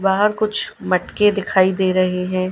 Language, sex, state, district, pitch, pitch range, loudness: Hindi, female, Gujarat, Gandhinagar, 190 Hz, 185-205 Hz, -18 LUFS